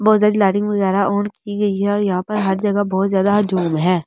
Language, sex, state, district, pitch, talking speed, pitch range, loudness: Hindi, female, Delhi, New Delhi, 200 Hz, 250 wpm, 190-205 Hz, -18 LUFS